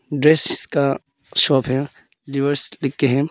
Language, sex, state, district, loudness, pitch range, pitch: Hindi, female, Arunachal Pradesh, Papum Pare, -18 LUFS, 135-145 Hz, 140 Hz